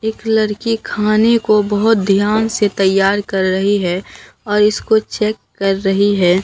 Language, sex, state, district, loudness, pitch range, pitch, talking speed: Hindi, female, Bihar, Katihar, -15 LUFS, 195-220 Hz, 210 Hz, 160 wpm